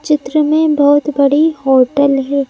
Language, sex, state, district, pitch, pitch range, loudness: Hindi, male, Madhya Pradesh, Bhopal, 285 Hz, 275-300 Hz, -12 LUFS